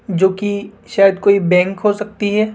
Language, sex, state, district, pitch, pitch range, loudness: Hindi, female, Rajasthan, Jaipur, 200 Hz, 190-210 Hz, -15 LUFS